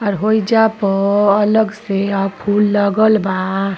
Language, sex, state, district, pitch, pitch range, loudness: Bhojpuri, female, Uttar Pradesh, Ghazipur, 205 Hz, 195-215 Hz, -15 LUFS